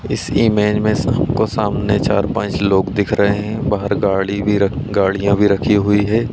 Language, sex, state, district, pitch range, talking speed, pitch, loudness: Hindi, male, Uttar Pradesh, Ghazipur, 100-105 Hz, 170 wpm, 105 Hz, -16 LUFS